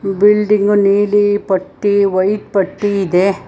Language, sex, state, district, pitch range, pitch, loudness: Kannada, female, Karnataka, Bangalore, 195-205 Hz, 200 Hz, -14 LUFS